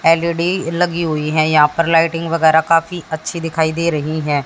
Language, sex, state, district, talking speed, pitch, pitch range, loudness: Hindi, female, Haryana, Jhajjar, 190 wpm, 165 Hz, 155-170 Hz, -16 LUFS